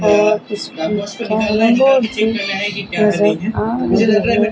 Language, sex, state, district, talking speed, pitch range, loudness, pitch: Hindi, female, Chandigarh, Chandigarh, 55 wpm, 205-220 Hz, -16 LUFS, 215 Hz